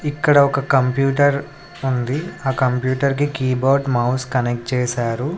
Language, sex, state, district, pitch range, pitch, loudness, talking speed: Telugu, male, Andhra Pradesh, Sri Satya Sai, 125-145 Hz, 135 Hz, -19 LUFS, 120 wpm